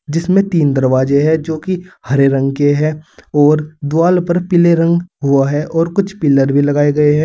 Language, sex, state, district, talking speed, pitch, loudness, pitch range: Hindi, male, Uttar Pradesh, Saharanpur, 200 wpm, 155 Hz, -14 LUFS, 145-170 Hz